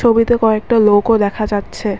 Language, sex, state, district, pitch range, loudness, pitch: Bengali, female, Assam, Kamrup Metropolitan, 205-230 Hz, -14 LUFS, 215 Hz